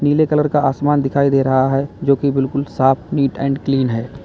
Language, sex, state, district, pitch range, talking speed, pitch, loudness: Hindi, male, Uttar Pradesh, Lalitpur, 135-145 Hz, 210 wpm, 140 Hz, -17 LUFS